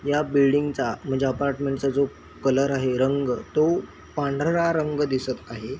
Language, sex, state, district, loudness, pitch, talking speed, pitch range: Marathi, male, Maharashtra, Chandrapur, -24 LUFS, 140 Hz, 135 wpm, 135-145 Hz